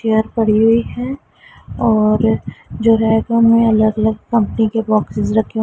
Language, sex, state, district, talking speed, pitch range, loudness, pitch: Hindi, female, Punjab, Pathankot, 170 wpm, 215-230 Hz, -15 LUFS, 220 Hz